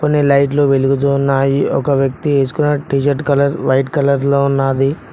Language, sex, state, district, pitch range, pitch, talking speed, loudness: Telugu, male, Telangana, Mahabubabad, 135-145 Hz, 140 Hz, 150 wpm, -14 LUFS